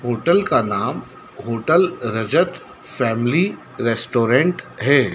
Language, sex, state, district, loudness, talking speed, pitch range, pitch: Hindi, male, Madhya Pradesh, Dhar, -19 LUFS, 95 wpm, 115-165 Hz, 125 Hz